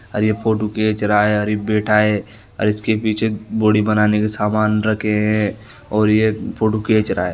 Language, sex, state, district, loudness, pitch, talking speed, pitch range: Marwari, male, Rajasthan, Nagaur, -17 LUFS, 105 Hz, 205 wpm, 105-110 Hz